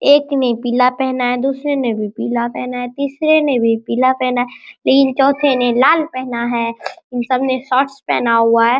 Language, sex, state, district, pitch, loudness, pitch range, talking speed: Hindi, male, Bihar, Araria, 255 Hz, -16 LUFS, 240-275 Hz, 205 wpm